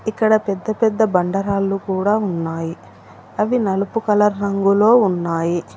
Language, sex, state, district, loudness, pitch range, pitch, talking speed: Telugu, female, Telangana, Hyderabad, -18 LUFS, 175-215 Hz, 195 Hz, 125 wpm